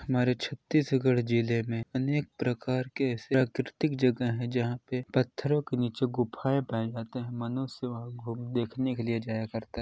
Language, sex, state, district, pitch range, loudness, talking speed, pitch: Hindi, male, Chhattisgarh, Balrampur, 115-130 Hz, -30 LUFS, 175 wpm, 125 Hz